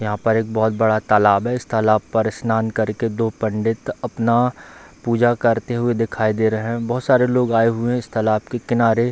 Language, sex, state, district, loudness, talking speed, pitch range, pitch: Hindi, male, Bihar, Darbhanga, -19 LUFS, 235 wpm, 110-120 Hz, 115 Hz